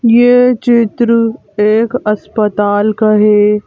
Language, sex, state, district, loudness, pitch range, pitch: Hindi, female, Madhya Pradesh, Bhopal, -11 LUFS, 210-235 Hz, 215 Hz